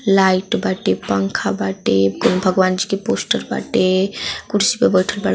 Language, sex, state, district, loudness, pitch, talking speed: Bhojpuri, female, Uttar Pradesh, Ghazipur, -18 LUFS, 185 Hz, 155 wpm